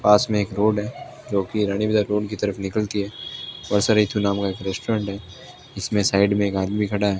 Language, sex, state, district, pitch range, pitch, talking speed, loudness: Hindi, male, Rajasthan, Bikaner, 100-105 Hz, 105 Hz, 225 wpm, -22 LUFS